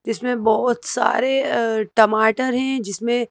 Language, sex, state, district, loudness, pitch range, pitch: Hindi, female, Madhya Pradesh, Bhopal, -19 LUFS, 220-250 Hz, 235 Hz